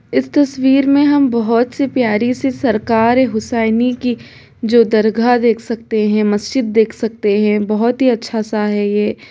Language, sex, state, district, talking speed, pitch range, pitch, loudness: Hindi, female, Bihar, Gopalganj, 175 wpm, 220-250 Hz, 230 Hz, -15 LUFS